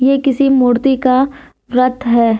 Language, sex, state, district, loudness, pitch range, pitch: Hindi, female, Jharkhand, Deoghar, -13 LUFS, 250-270 Hz, 260 Hz